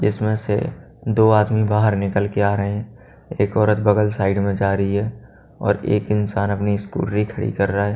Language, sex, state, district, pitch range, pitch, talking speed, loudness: Hindi, male, Haryana, Charkhi Dadri, 100-110 Hz, 105 Hz, 205 wpm, -20 LUFS